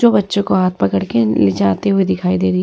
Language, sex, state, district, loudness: Hindi, female, Bihar, Vaishali, -15 LUFS